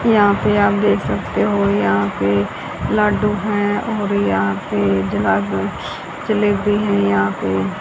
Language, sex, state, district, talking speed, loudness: Hindi, female, Haryana, Jhajjar, 130 wpm, -18 LUFS